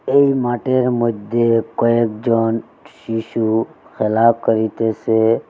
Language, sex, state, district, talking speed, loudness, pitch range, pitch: Bengali, male, Assam, Hailakandi, 75 wpm, -17 LUFS, 110-120 Hz, 115 Hz